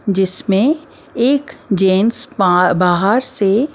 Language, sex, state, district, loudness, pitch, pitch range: Hindi, female, Maharashtra, Mumbai Suburban, -15 LUFS, 205 Hz, 190-260 Hz